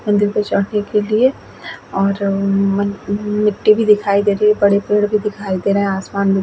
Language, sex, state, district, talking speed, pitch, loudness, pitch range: Hindi, female, Bihar, Vaishali, 225 wpm, 205 Hz, -16 LUFS, 200-210 Hz